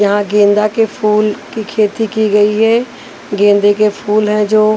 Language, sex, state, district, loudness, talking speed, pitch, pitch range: Hindi, female, Punjab, Pathankot, -12 LUFS, 190 wpm, 210 Hz, 205-220 Hz